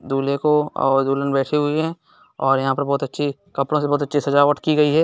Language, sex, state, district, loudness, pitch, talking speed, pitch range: Hindi, male, Bihar, East Champaran, -20 LUFS, 145 Hz, 240 wpm, 135-150 Hz